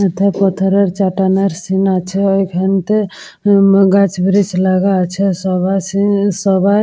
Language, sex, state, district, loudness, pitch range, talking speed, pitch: Bengali, female, West Bengal, Purulia, -13 LUFS, 190-200 Hz, 125 wpm, 195 Hz